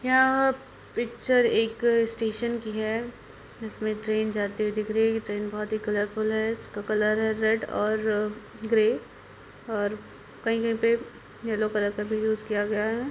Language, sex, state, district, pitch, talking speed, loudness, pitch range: Hindi, female, Bihar, Purnia, 220 Hz, 165 wpm, -27 LUFS, 215-230 Hz